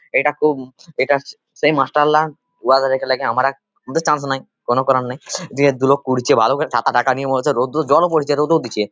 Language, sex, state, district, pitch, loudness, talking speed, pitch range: Bengali, male, West Bengal, Purulia, 140 Hz, -17 LUFS, 160 wpm, 130-150 Hz